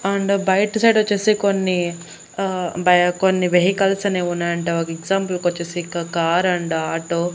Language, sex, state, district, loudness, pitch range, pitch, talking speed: Telugu, female, Andhra Pradesh, Annamaya, -19 LUFS, 170-195 Hz, 180 Hz, 155 wpm